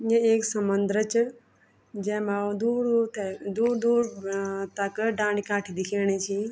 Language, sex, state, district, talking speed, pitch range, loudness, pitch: Garhwali, female, Uttarakhand, Tehri Garhwal, 145 wpm, 200-230 Hz, -26 LUFS, 210 Hz